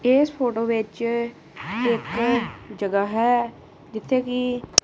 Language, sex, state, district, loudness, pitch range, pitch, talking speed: Punjabi, male, Punjab, Kapurthala, -23 LUFS, 215-245 Hz, 235 Hz, 100 wpm